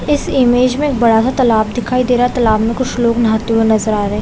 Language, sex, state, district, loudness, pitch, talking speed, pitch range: Hindi, female, Chhattisgarh, Raigarh, -13 LUFS, 235 Hz, 270 wpm, 220-250 Hz